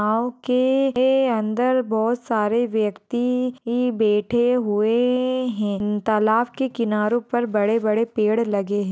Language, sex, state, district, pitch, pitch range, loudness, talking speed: Hindi, female, Maharashtra, Nagpur, 230 Hz, 215-250 Hz, -21 LUFS, 120 wpm